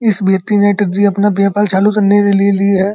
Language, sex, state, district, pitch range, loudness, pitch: Hindi, male, Uttar Pradesh, Muzaffarnagar, 195-205 Hz, -12 LUFS, 200 Hz